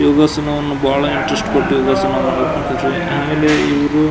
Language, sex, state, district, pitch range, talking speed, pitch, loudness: Kannada, male, Karnataka, Belgaum, 145-150 Hz, 130 wpm, 145 Hz, -15 LUFS